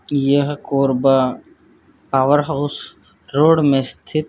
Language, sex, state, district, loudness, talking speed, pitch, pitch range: Hindi, male, Chhattisgarh, Korba, -17 LUFS, 100 wpm, 140 Hz, 135-145 Hz